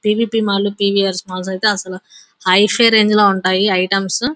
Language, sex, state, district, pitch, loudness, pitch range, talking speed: Telugu, female, Andhra Pradesh, Guntur, 200 Hz, -15 LUFS, 185-210 Hz, 150 wpm